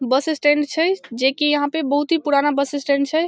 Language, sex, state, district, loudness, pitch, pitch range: Maithili, female, Bihar, Samastipur, -19 LUFS, 290 Hz, 280-315 Hz